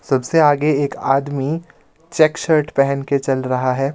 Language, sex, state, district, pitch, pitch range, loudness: Hindi, male, Himachal Pradesh, Shimla, 145 Hz, 135-155 Hz, -17 LUFS